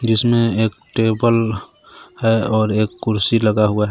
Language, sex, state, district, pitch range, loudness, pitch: Hindi, male, Jharkhand, Garhwa, 110-115 Hz, -17 LUFS, 110 Hz